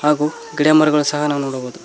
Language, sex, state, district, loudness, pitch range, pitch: Kannada, male, Karnataka, Koppal, -17 LUFS, 145-150 Hz, 150 Hz